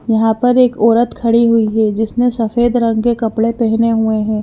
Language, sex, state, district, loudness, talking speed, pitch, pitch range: Hindi, female, Madhya Pradesh, Bhopal, -14 LUFS, 205 wpm, 230 Hz, 220-240 Hz